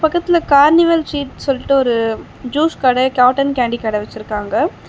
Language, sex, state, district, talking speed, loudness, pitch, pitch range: Tamil, female, Tamil Nadu, Chennai, 135 wpm, -15 LUFS, 270 Hz, 235-305 Hz